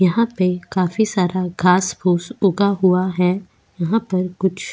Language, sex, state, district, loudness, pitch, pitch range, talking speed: Hindi, female, Goa, North and South Goa, -19 LUFS, 185 Hz, 180-195 Hz, 150 wpm